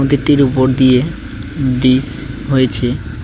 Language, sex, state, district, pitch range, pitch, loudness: Bengali, male, West Bengal, Cooch Behar, 130-135 Hz, 130 Hz, -14 LUFS